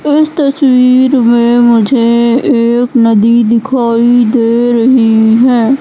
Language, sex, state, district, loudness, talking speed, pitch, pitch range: Hindi, female, Madhya Pradesh, Katni, -8 LUFS, 105 wpm, 240 Hz, 230-255 Hz